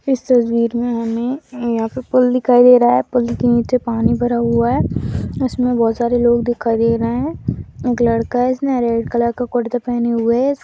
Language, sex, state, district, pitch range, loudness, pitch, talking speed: Hindi, female, Uttar Pradesh, Deoria, 235-250 Hz, -16 LUFS, 240 Hz, 220 wpm